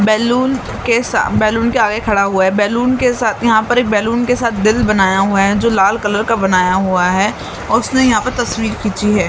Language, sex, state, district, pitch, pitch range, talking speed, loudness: Hindi, female, Maharashtra, Mumbai Suburban, 215 Hz, 200-235 Hz, 230 wpm, -14 LUFS